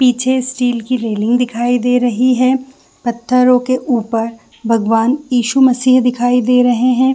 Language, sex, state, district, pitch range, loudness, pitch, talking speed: Hindi, female, Jharkhand, Jamtara, 240-255 Hz, -14 LUFS, 250 Hz, 150 wpm